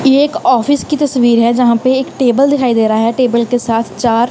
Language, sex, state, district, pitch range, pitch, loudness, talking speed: Hindi, female, Punjab, Kapurthala, 235-270 Hz, 245 Hz, -12 LUFS, 250 wpm